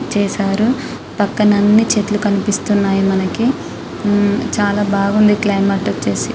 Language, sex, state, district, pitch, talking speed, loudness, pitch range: Telugu, female, Telangana, Karimnagar, 205 Hz, 115 wpm, -15 LUFS, 200-210 Hz